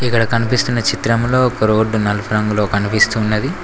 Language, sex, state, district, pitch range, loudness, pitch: Telugu, male, Telangana, Mahabubabad, 105-120 Hz, -16 LUFS, 110 Hz